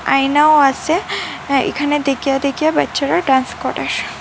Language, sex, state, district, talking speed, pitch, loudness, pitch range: Bengali, female, Assam, Hailakandi, 130 wpm, 285 Hz, -16 LUFS, 275-310 Hz